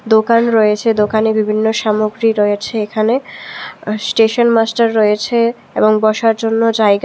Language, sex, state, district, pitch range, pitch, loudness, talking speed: Bengali, female, Tripura, West Tripura, 215-225 Hz, 220 Hz, -14 LUFS, 120 wpm